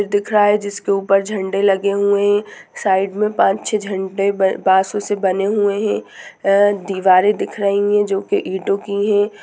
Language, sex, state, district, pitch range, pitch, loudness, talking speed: Hindi, female, Jharkhand, Jamtara, 195-205 Hz, 200 Hz, -17 LUFS, 160 wpm